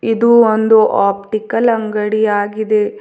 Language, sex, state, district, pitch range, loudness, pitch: Kannada, female, Karnataka, Bidar, 210-225 Hz, -13 LUFS, 215 Hz